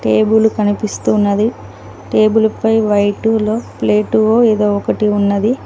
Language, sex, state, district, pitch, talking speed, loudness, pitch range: Telugu, female, Telangana, Mahabubabad, 215 Hz, 105 wpm, -14 LUFS, 205-220 Hz